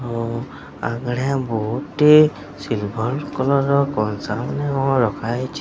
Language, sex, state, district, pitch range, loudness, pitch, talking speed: Odia, male, Odisha, Sambalpur, 110-140 Hz, -20 LUFS, 125 Hz, 105 wpm